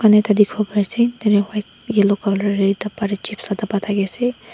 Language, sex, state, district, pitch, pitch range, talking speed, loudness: Nagamese, female, Nagaland, Dimapur, 210 Hz, 200-215 Hz, 160 wpm, -19 LUFS